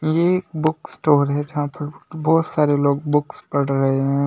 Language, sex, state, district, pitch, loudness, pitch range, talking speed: Hindi, male, Delhi, New Delhi, 145 Hz, -20 LUFS, 140-155 Hz, 195 wpm